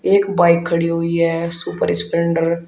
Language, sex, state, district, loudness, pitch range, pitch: Hindi, male, Uttar Pradesh, Shamli, -17 LUFS, 165-170 Hz, 170 Hz